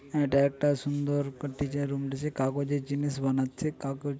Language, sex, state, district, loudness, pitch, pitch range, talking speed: Bengali, male, West Bengal, Paschim Medinipur, -30 LUFS, 140 Hz, 135-145 Hz, 115 wpm